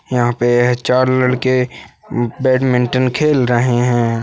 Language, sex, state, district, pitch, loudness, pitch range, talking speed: Hindi, male, Maharashtra, Nagpur, 125 Hz, -15 LUFS, 120-130 Hz, 140 wpm